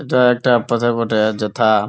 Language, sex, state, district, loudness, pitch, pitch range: Bengali, male, West Bengal, Malda, -16 LUFS, 120 Hz, 110-125 Hz